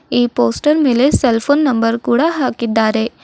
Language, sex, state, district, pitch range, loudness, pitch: Kannada, female, Karnataka, Bidar, 230-275 Hz, -14 LUFS, 245 Hz